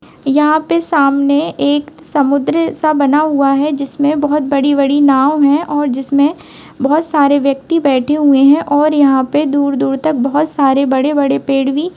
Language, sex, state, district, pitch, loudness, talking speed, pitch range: Hindi, female, Bihar, Begusarai, 285 Hz, -13 LUFS, 160 wpm, 275-300 Hz